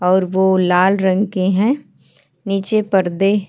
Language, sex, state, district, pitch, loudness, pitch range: Hindi, female, Uttarakhand, Tehri Garhwal, 190 Hz, -16 LUFS, 185-200 Hz